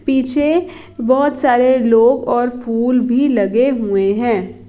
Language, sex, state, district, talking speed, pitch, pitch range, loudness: Hindi, female, Bihar, Jahanabad, 130 wpm, 250 Hz, 230-270 Hz, -15 LUFS